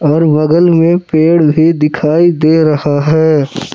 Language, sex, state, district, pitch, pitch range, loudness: Hindi, male, Jharkhand, Palamu, 155 Hz, 150-165 Hz, -10 LUFS